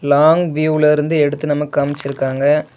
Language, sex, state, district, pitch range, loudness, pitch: Tamil, male, Tamil Nadu, Namakkal, 145-155 Hz, -16 LUFS, 150 Hz